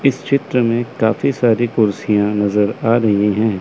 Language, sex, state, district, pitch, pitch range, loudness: Hindi, male, Chandigarh, Chandigarh, 110 Hz, 105-120 Hz, -16 LUFS